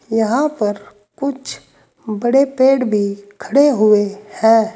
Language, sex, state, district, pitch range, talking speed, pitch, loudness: Hindi, male, Uttar Pradesh, Saharanpur, 210-270 Hz, 115 wpm, 225 Hz, -16 LUFS